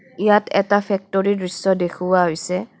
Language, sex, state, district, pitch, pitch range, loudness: Assamese, female, Assam, Kamrup Metropolitan, 190 Hz, 180-200 Hz, -19 LUFS